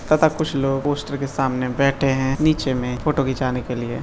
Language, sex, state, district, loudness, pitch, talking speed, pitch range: Hindi, male, Bihar, Madhepura, -21 LUFS, 135 Hz, 210 wpm, 130-145 Hz